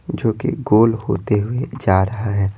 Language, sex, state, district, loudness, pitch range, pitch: Hindi, male, Bihar, Patna, -18 LUFS, 105-130 Hz, 110 Hz